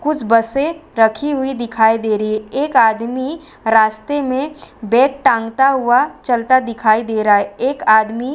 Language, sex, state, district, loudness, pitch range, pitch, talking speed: Hindi, female, Uttar Pradesh, Varanasi, -15 LUFS, 220-270 Hz, 240 Hz, 165 wpm